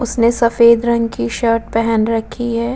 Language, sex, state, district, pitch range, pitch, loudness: Hindi, female, Uttar Pradesh, Muzaffarnagar, 230-235 Hz, 230 Hz, -15 LUFS